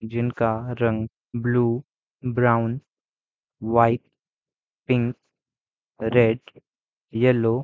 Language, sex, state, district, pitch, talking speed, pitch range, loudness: Hindi, male, Bihar, Gopalganj, 120 Hz, 70 wpm, 115-120 Hz, -23 LUFS